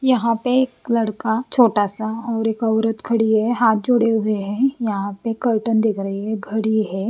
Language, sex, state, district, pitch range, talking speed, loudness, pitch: Hindi, female, Bihar, West Champaran, 215-235 Hz, 195 wpm, -19 LUFS, 225 Hz